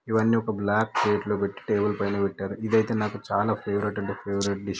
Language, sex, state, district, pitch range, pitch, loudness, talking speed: Telugu, male, Telangana, Nalgonda, 100-110 Hz, 105 Hz, -26 LUFS, 225 wpm